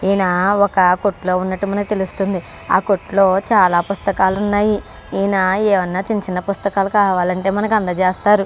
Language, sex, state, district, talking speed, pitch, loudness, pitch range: Telugu, female, Andhra Pradesh, Krishna, 80 wpm, 195 Hz, -17 LUFS, 185-205 Hz